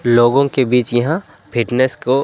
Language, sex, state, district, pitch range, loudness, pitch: Hindi, male, Jharkhand, Deoghar, 120-135 Hz, -16 LUFS, 125 Hz